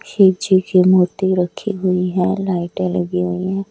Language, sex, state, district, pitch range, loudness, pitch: Hindi, male, Odisha, Nuapada, 180-190 Hz, -17 LUFS, 185 Hz